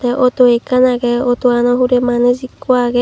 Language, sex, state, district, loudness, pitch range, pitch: Chakma, female, Tripura, Dhalai, -13 LUFS, 245-250 Hz, 245 Hz